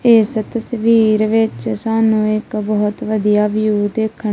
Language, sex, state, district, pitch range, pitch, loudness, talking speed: Punjabi, female, Punjab, Kapurthala, 210-225 Hz, 215 Hz, -16 LUFS, 125 wpm